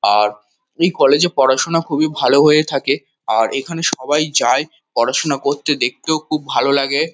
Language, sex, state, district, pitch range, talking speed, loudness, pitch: Bengali, male, West Bengal, North 24 Parganas, 135-155 Hz, 160 wpm, -16 LUFS, 145 Hz